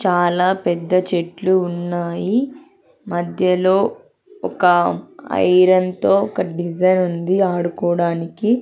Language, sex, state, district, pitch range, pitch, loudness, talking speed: Telugu, female, Andhra Pradesh, Sri Satya Sai, 175-195 Hz, 185 Hz, -18 LUFS, 75 wpm